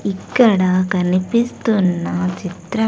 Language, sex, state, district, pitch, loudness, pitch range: Telugu, female, Andhra Pradesh, Sri Satya Sai, 185 Hz, -17 LUFS, 180-225 Hz